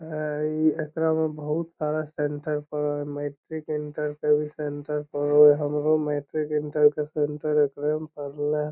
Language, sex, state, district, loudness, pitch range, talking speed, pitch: Magahi, male, Bihar, Lakhisarai, -25 LUFS, 150-155 Hz, 170 wpm, 150 Hz